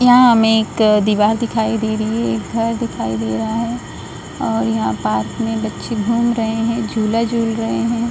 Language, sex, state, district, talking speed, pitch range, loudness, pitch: Hindi, female, Bihar, Saran, 190 wpm, 210-230 Hz, -17 LUFS, 225 Hz